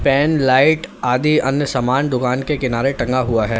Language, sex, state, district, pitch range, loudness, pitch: Hindi, male, Uttar Pradesh, Lalitpur, 125-145 Hz, -17 LUFS, 130 Hz